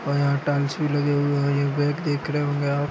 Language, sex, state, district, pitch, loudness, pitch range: Hindi, male, Bihar, Madhepura, 145 Hz, -23 LUFS, 140-145 Hz